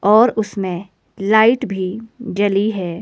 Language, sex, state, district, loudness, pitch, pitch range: Hindi, female, Himachal Pradesh, Shimla, -17 LUFS, 205 Hz, 190-220 Hz